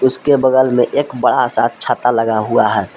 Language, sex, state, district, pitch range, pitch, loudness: Hindi, male, Jharkhand, Palamu, 115-130 Hz, 125 Hz, -14 LUFS